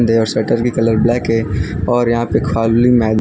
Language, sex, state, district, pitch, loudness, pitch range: Hindi, male, Gujarat, Valsad, 115 Hz, -15 LUFS, 110-120 Hz